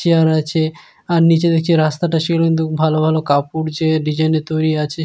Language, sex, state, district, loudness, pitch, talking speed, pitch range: Bengali, male, West Bengal, Jalpaiguri, -16 LUFS, 160 Hz, 200 wpm, 155-165 Hz